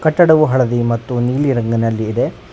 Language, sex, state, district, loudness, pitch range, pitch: Kannada, male, Karnataka, Bangalore, -15 LUFS, 115-145 Hz, 120 Hz